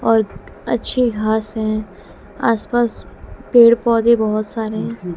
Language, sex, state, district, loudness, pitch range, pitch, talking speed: Hindi, female, Haryana, Jhajjar, -17 LUFS, 215-235 Hz, 220 Hz, 105 wpm